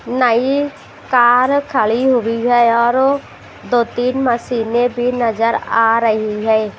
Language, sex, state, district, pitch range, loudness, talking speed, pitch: Hindi, female, Maharashtra, Washim, 230-255 Hz, -15 LUFS, 105 wpm, 240 Hz